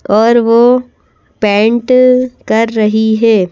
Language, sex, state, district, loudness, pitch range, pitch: Hindi, female, Madhya Pradesh, Bhopal, -10 LUFS, 215-245 Hz, 230 Hz